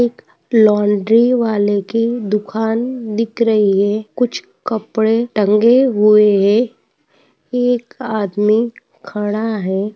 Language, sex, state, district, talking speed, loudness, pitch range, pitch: Hindi, female, Andhra Pradesh, Anantapur, 95 wpm, -15 LUFS, 210-235 Hz, 220 Hz